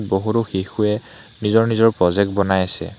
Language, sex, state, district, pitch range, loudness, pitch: Assamese, male, Assam, Hailakandi, 95-110 Hz, -19 LUFS, 105 Hz